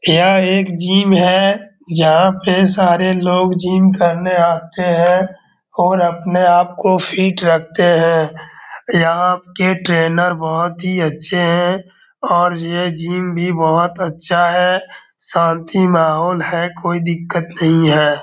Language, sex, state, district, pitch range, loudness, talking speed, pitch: Hindi, male, Bihar, Araria, 170-185 Hz, -14 LUFS, 130 wpm, 175 Hz